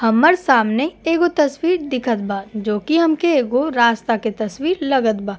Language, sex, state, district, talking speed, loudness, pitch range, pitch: Bhojpuri, female, Uttar Pradesh, Gorakhpur, 165 wpm, -18 LUFS, 225-315 Hz, 260 Hz